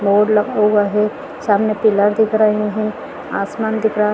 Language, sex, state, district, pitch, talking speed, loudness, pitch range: Hindi, female, Chhattisgarh, Sarguja, 210 Hz, 175 wpm, -16 LUFS, 210-220 Hz